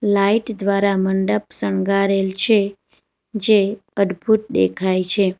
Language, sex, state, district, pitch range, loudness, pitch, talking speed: Gujarati, female, Gujarat, Valsad, 190-210 Hz, -18 LUFS, 195 Hz, 100 wpm